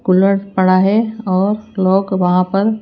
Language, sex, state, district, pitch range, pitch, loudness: Hindi, female, Chhattisgarh, Raipur, 185-210 Hz, 195 Hz, -15 LUFS